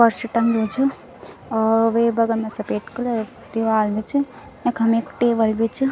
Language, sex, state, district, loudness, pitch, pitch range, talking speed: Garhwali, female, Uttarakhand, Tehri Garhwal, -21 LUFS, 230 Hz, 220-235 Hz, 175 wpm